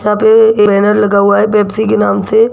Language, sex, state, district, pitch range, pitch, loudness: Hindi, female, Rajasthan, Jaipur, 205-220 Hz, 210 Hz, -10 LUFS